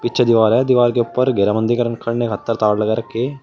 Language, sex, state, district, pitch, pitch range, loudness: Hindi, male, Uttar Pradesh, Shamli, 115 Hz, 110-120 Hz, -17 LUFS